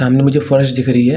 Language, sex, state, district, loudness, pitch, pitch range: Hindi, male, Uttar Pradesh, Varanasi, -13 LUFS, 130 Hz, 130-140 Hz